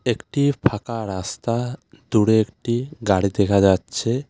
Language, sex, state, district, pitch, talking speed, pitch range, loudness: Bengali, male, West Bengal, Alipurduar, 115 Hz, 110 wpm, 105-125 Hz, -21 LUFS